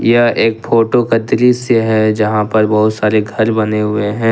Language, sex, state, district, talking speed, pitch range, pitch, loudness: Hindi, male, Jharkhand, Ranchi, 195 wpm, 105-115 Hz, 110 Hz, -13 LUFS